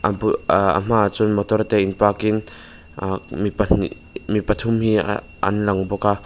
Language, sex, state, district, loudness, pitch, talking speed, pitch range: Mizo, male, Mizoram, Aizawl, -20 LUFS, 105 Hz, 190 wpm, 100-105 Hz